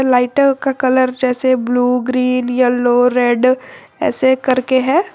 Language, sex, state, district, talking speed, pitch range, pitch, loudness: Hindi, female, Jharkhand, Garhwa, 130 wpm, 250-260 Hz, 255 Hz, -14 LUFS